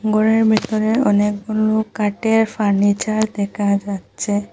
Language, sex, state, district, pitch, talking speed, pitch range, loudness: Bengali, female, Assam, Hailakandi, 215 Hz, 95 wpm, 205-220 Hz, -18 LUFS